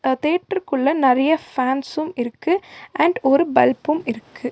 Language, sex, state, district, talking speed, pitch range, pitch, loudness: Tamil, female, Tamil Nadu, Nilgiris, 120 wpm, 260-325 Hz, 285 Hz, -20 LUFS